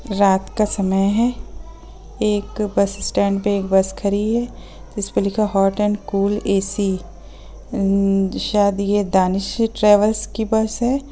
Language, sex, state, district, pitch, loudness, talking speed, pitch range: Hindi, female, Bihar, Gopalganj, 205 Hz, -19 LUFS, 140 wpm, 195-215 Hz